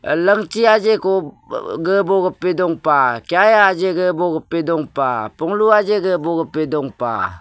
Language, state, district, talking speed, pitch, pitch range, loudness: Nyishi, Arunachal Pradesh, Papum Pare, 80 wpm, 180 Hz, 165-210 Hz, -16 LUFS